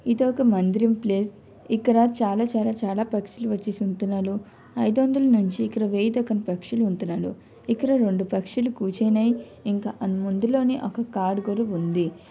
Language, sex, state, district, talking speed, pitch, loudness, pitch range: Telugu, female, Andhra Pradesh, Srikakulam, 145 wpm, 215 Hz, -24 LUFS, 195-235 Hz